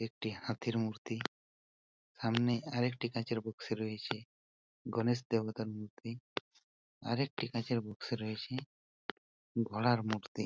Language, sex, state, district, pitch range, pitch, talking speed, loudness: Bengali, male, West Bengal, Purulia, 110-120 Hz, 115 Hz, 115 wpm, -38 LUFS